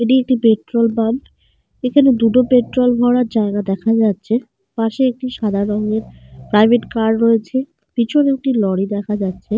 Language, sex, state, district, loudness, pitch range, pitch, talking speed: Bengali, female, Jharkhand, Sahebganj, -16 LUFS, 210-250 Hz, 230 Hz, 150 wpm